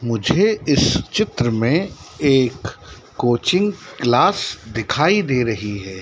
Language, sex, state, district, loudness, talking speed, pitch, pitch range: Hindi, male, Madhya Pradesh, Dhar, -18 LUFS, 100 wpm, 125 Hz, 115-160 Hz